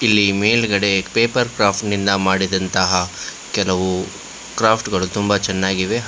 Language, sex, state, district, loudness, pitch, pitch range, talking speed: Kannada, male, Karnataka, Bangalore, -17 LUFS, 100 Hz, 95-110 Hz, 110 wpm